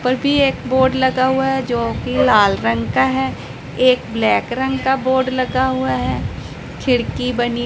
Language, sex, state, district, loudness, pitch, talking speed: Hindi, female, Punjab, Pathankot, -17 LUFS, 255 Hz, 170 wpm